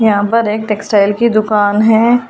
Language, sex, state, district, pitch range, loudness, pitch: Hindi, female, Delhi, New Delhi, 210-225 Hz, -12 LUFS, 215 Hz